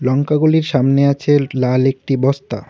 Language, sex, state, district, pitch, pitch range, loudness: Bengali, male, West Bengal, Cooch Behar, 135 Hz, 130-145 Hz, -15 LUFS